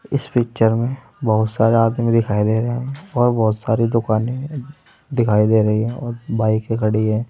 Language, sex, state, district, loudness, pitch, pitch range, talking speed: Hindi, male, Uttar Pradesh, Saharanpur, -18 LUFS, 115 Hz, 110-120 Hz, 180 wpm